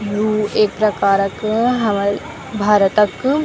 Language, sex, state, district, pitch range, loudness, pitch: Garhwali, female, Uttarakhand, Tehri Garhwal, 200-215 Hz, -16 LUFS, 210 Hz